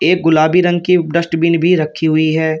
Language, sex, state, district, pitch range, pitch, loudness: Hindi, male, Uttar Pradesh, Shamli, 160-175 Hz, 165 Hz, -13 LUFS